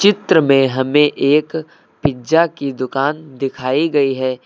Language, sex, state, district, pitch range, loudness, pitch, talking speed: Hindi, male, Uttar Pradesh, Lucknow, 130-155 Hz, -16 LUFS, 140 Hz, 135 wpm